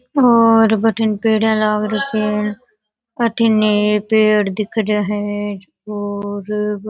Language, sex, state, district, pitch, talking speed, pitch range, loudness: Rajasthani, female, Rajasthan, Nagaur, 215 Hz, 120 wpm, 210-220 Hz, -16 LUFS